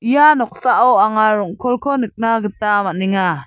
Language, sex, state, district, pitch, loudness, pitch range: Garo, female, Meghalaya, South Garo Hills, 215 Hz, -15 LUFS, 200-245 Hz